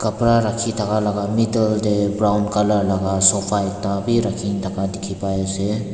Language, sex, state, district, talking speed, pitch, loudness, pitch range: Nagamese, male, Nagaland, Dimapur, 170 wpm, 105 Hz, -19 LUFS, 100-110 Hz